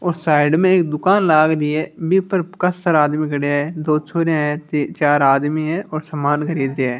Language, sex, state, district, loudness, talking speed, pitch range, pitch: Marwari, male, Rajasthan, Nagaur, -17 LUFS, 225 wpm, 150-170 Hz, 155 Hz